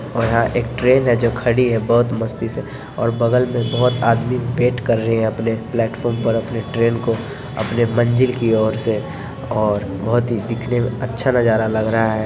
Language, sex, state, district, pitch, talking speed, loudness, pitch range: Hindi, male, Bihar, Sitamarhi, 115 Hz, 200 wpm, -18 LUFS, 115-125 Hz